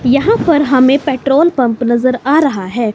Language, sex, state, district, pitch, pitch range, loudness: Hindi, female, Himachal Pradesh, Shimla, 265 Hz, 245-290 Hz, -12 LUFS